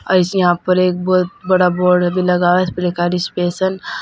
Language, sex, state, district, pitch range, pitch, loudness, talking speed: Hindi, female, Uttar Pradesh, Saharanpur, 175-185 Hz, 180 Hz, -16 LUFS, 195 wpm